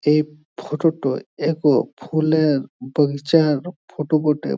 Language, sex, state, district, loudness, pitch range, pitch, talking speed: Bengali, male, West Bengal, Jhargram, -20 LUFS, 145-155 Hz, 150 Hz, 90 wpm